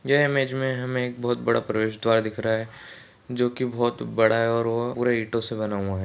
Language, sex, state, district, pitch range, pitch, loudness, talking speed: Hindi, male, Maharashtra, Solapur, 110-125 Hz, 120 Hz, -24 LUFS, 240 wpm